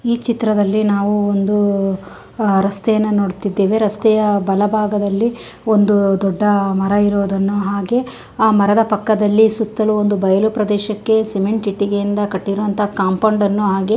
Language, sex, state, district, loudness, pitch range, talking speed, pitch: Kannada, female, Karnataka, Mysore, -16 LUFS, 200-215 Hz, 120 wpm, 205 Hz